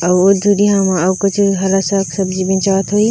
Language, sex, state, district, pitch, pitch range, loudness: Chhattisgarhi, female, Chhattisgarh, Raigarh, 195 Hz, 190-200 Hz, -14 LUFS